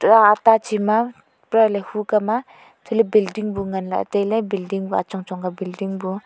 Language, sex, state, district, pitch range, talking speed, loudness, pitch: Wancho, female, Arunachal Pradesh, Longding, 195-220 Hz, 200 wpm, -20 LUFS, 210 Hz